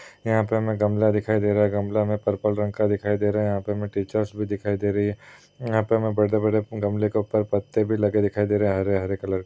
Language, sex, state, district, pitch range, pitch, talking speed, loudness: Hindi, male, Uttar Pradesh, Jalaun, 100-110 Hz, 105 Hz, 275 wpm, -23 LUFS